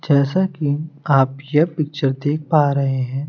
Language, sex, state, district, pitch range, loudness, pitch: Hindi, male, Bihar, Kaimur, 135-155 Hz, -19 LUFS, 145 Hz